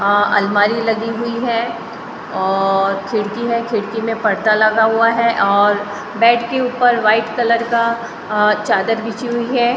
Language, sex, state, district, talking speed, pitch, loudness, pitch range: Hindi, female, Maharashtra, Gondia, 160 wpm, 225 Hz, -16 LUFS, 210-235 Hz